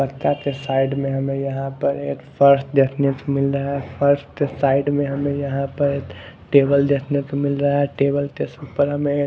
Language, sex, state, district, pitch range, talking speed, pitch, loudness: Hindi, female, Himachal Pradesh, Shimla, 135-140 Hz, 195 wpm, 140 Hz, -20 LUFS